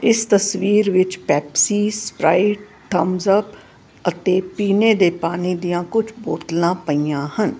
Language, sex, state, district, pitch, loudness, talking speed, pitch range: Punjabi, female, Karnataka, Bangalore, 185 Hz, -18 LUFS, 120 wpm, 175-205 Hz